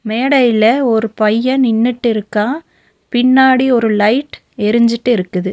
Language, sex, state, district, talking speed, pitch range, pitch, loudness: Tamil, female, Tamil Nadu, Nilgiris, 110 wpm, 215-255 Hz, 235 Hz, -13 LUFS